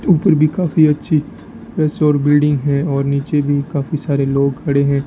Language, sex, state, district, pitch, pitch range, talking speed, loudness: Hindi, male, Rajasthan, Bikaner, 145 Hz, 140-155 Hz, 190 wpm, -16 LUFS